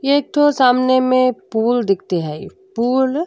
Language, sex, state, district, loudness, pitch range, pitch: Bhojpuri, female, Uttar Pradesh, Deoria, -16 LUFS, 220-265 Hz, 255 Hz